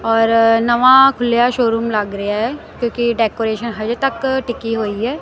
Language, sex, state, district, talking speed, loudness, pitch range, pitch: Punjabi, female, Punjab, Kapurthala, 160 wpm, -16 LUFS, 225-245 Hz, 230 Hz